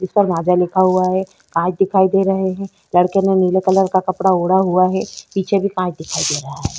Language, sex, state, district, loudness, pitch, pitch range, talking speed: Hindi, female, Chhattisgarh, Korba, -16 LUFS, 185 Hz, 180-190 Hz, 230 wpm